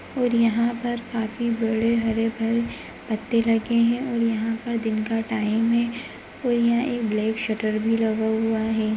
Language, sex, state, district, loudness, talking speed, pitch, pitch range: Hindi, female, Bihar, Begusarai, -23 LUFS, 160 wpm, 225 Hz, 220-235 Hz